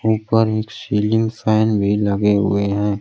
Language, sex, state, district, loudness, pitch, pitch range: Hindi, male, Bihar, Kaimur, -18 LUFS, 105 Hz, 100-110 Hz